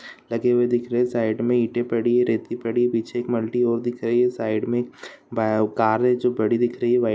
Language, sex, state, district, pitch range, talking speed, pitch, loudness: Hindi, male, Bihar, Sitamarhi, 115-120 Hz, 285 wpm, 120 Hz, -22 LUFS